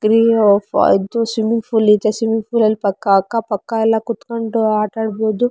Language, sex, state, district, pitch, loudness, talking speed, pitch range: Kannada, female, Karnataka, Shimoga, 220 Hz, -16 LUFS, 150 wpm, 215-230 Hz